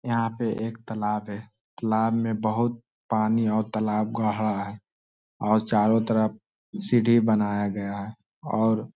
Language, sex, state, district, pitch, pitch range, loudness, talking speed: Hindi, male, Jharkhand, Sahebganj, 110 Hz, 105-115 Hz, -25 LUFS, 145 wpm